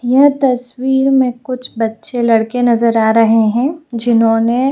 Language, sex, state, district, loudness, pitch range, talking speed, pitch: Hindi, female, Haryana, Jhajjar, -13 LUFS, 225-260 Hz, 150 wpm, 245 Hz